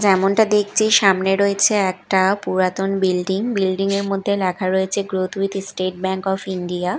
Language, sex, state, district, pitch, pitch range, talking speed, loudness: Bengali, female, Odisha, Malkangiri, 195 Hz, 185-200 Hz, 165 wpm, -19 LUFS